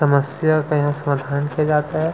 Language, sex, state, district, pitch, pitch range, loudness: Hindi, male, Chhattisgarh, Sukma, 150 Hz, 140-155 Hz, -19 LUFS